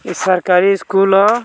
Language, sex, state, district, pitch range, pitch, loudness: Bhojpuri, male, Bihar, Muzaffarpur, 185-195 Hz, 195 Hz, -13 LUFS